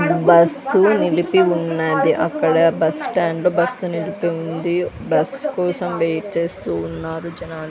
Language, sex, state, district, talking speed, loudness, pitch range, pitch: Telugu, female, Andhra Pradesh, Sri Satya Sai, 115 wpm, -18 LUFS, 165-180 Hz, 170 Hz